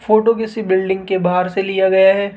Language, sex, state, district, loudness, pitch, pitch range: Hindi, female, Rajasthan, Jaipur, -16 LUFS, 190 Hz, 190-215 Hz